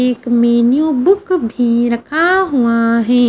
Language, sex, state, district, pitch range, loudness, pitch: Hindi, female, Haryana, Charkhi Dadri, 235-310 Hz, -13 LUFS, 245 Hz